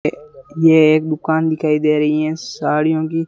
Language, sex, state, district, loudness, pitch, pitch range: Hindi, male, Rajasthan, Bikaner, -16 LUFS, 155 Hz, 155-160 Hz